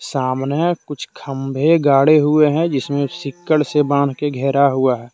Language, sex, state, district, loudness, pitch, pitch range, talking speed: Hindi, male, Jharkhand, Deoghar, -17 LUFS, 140 Hz, 135-150 Hz, 165 wpm